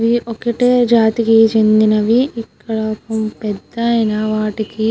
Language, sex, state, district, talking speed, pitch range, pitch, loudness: Telugu, female, Andhra Pradesh, Guntur, 95 wpm, 215-230 Hz, 220 Hz, -15 LUFS